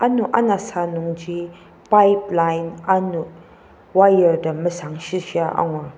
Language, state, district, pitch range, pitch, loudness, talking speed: Ao, Nagaland, Dimapur, 165-190 Hz, 175 Hz, -19 LUFS, 80 wpm